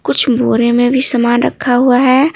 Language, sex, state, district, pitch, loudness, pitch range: Hindi, female, Bihar, Patna, 250 Hz, -11 LUFS, 240-260 Hz